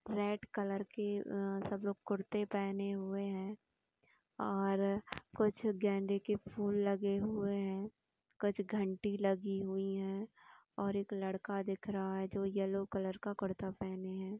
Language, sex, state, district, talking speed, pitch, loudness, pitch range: Hindi, female, Uttar Pradesh, Jyotiba Phule Nagar, 155 wpm, 200 Hz, -39 LUFS, 195-205 Hz